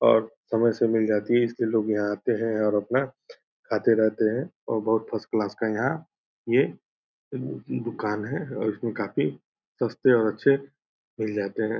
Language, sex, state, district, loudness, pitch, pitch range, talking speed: Angika, male, Bihar, Purnia, -26 LUFS, 110 Hz, 110-120 Hz, 170 wpm